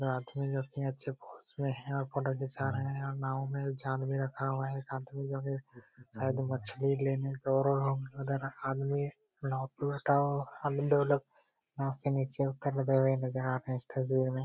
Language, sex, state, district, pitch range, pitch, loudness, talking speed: Hindi, male, Jharkhand, Jamtara, 135-140 Hz, 135 Hz, -34 LUFS, 180 wpm